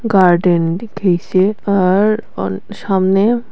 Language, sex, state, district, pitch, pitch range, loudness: Bengali, female, Tripura, West Tripura, 195 Hz, 180-210 Hz, -15 LUFS